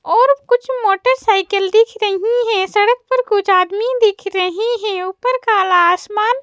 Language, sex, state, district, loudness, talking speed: Hindi, female, Madhya Pradesh, Bhopal, -15 LUFS, 150 wpm